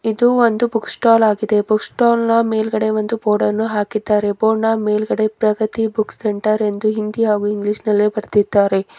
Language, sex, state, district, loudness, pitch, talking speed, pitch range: Kannada, female, Karnataka, Bidar, -17 LUFS, 215 Hz, 135 wpm, 210-225 Hz